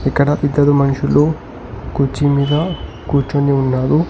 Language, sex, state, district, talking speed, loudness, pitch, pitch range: Telugu, male, Telangana, Hyderabad, 100 wpm, -15 LUFS, 140 Hz, 135-145 Hz